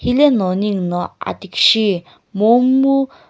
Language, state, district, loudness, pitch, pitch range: Sumi, Nagaland, Kohima, -15 LUFS, 220 Hz, 195-265 Hz